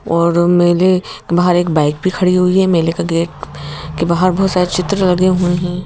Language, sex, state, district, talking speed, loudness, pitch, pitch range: Hindi, female, Madhya Pradesh, Bhopal, 205 wpm, -14 LUFS, 175 Hz, 170-185 Hz